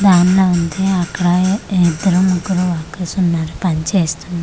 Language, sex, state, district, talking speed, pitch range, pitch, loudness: Telugu, female, Andhra Pradesh, Manyam, 120 wpm, 170-185 Hz, 180 Hz, -16 LUFS